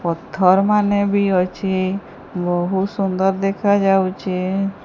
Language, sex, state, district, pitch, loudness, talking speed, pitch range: Odia, female, Odisha, Sambalpur, 190 Hz, -18 LUFS, 85 wpm, 185-195 Hz